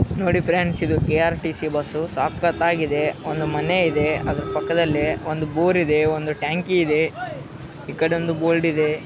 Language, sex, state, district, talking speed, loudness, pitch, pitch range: Kannada, male, Karnataka, Raichur, 145 wpm, -21 LUFS, 155 Hz, 150-170 Hz